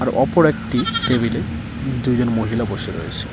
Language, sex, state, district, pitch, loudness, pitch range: Bengali, male, West Bengal, Cooch Behar, 115 Hz, -20 LUFS, 110-120 Hz